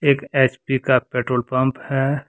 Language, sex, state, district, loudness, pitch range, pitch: Hindi, male, Jharkhand, Deoghar, -20 LUFS, 130-140 Hz, 135 Hz